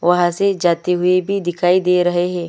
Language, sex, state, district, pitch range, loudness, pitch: Hindi, female, Chhattisgarh, Sukma, 175-180 Hz, -16 LUFS, 180 Hz